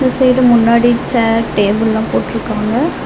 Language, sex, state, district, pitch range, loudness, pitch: Tamil, female, Tamil Nadu, Nilgiris, 225-255 Hz, -13 LUFS, 235 Hz